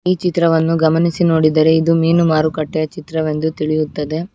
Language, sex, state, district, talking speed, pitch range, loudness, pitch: Kannada, female, Karnataka, Bangalore, 125 wpm, 155-165 Hz, -15 LUFS, 160 Hz